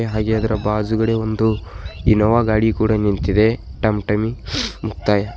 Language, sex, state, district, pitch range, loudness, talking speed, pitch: Kannada, male, Karnataka, Bidar, 105-110 Hz, -19 LUFS, 125 wpm, 110 Hz